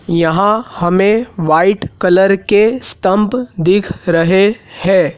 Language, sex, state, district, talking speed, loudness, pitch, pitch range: Hindi, male, Madhya Pradesh, Dhar, 105 wpm, -13 LUFS, 190 Hz, 175-210 Hz